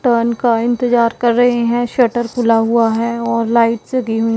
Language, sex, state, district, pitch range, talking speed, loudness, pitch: Hindi, female, Punjab, Pathankot, 230-240 Hz, 190 wpm, -15 LUFS, 235 Hz